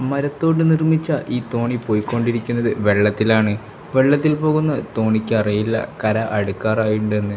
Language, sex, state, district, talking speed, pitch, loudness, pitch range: Malayalam, male, Kerala, Kasaragod, 105 wpm, 115 Hz, -19 LUFS, 110-140 Hz